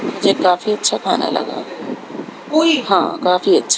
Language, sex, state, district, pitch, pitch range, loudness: Hindi, female, Haryana, Rohtak, 210 Hz, 180-295 Hz, -16 LUFS